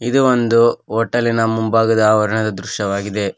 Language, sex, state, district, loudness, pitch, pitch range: Kannada, male, Karnataka, Koppal, -16 LUFS, 110 Hz, 105-115 Hz